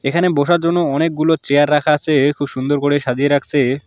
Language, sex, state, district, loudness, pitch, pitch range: Bengali, male, West Bengal, Alipurduar, -16 LUFS, 145 Hz, 140-160 Hz